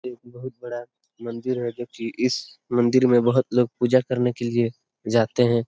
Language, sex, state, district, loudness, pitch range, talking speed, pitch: Hindi, male, Bihar, Darbhanga, -23 LUFS, 120-125 Hz, 190 wpm, 120 Hz